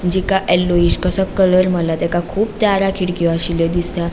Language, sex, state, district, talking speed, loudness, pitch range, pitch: Konkani, female, Goa, North and South Goa, 160 wpm, -16 LUFS, 170-190 Hz, 180 Hz